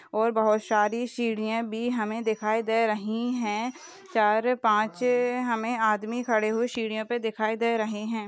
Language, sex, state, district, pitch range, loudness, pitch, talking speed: Hindi, female, Uttar Pradesh, Deoria, 215-235 Hz, -26 LUFS, 225 Hz, 165 wpm